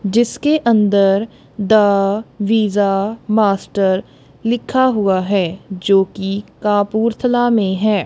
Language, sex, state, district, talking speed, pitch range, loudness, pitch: Hindi, female, Punjab, Kapurthala, 95 wpm, 195-225 Hz, -16 LUFS, 205 Hz